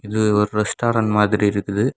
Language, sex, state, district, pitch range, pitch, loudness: Tamil, male, Tamil Nadu, Kanyakumari, 105-110 Hz, 105 Hz, -19 LUFS